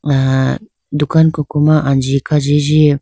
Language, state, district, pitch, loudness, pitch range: Idu Mishmi, Arunachal Pradesh, Lower Dibang Valley, 150 Hz, -14 LUFS, 140-155 Hz